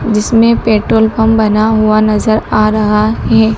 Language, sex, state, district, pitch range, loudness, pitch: Hindi, male, Madhya Pradesh, Dhar, 215-220 Hz, -10 LUFS, 220 Hz